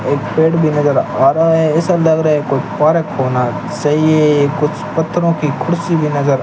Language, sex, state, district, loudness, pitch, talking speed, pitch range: Hindi, male, Rajasthan, Bikaner, -14 LUFS, 155 Hz, 225 wpm, 145-165 Hz